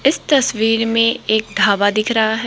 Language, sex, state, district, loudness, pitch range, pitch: Hindi, female, Rajasthan, Jaipur, -16 LUFS, 215-230 Hz, 225 Hz